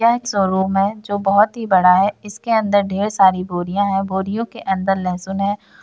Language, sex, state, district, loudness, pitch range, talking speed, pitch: Hindi, female, Uttar Pradesh, Etah, -18 LUFS, 190-210 Hz, 205 wpm, 200 Hz